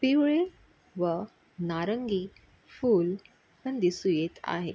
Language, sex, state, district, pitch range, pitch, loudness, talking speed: Marathi, female, Maharashtra, Sindhudurg, 175-260 Hz, 195 Hz, -29 LUFS, 100 wpm